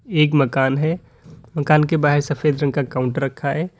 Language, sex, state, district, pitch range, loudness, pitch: Hindi, male, Uttar Pradesh, Lalitpur, 140-155 Hz, -19 LUFS, 145 Hz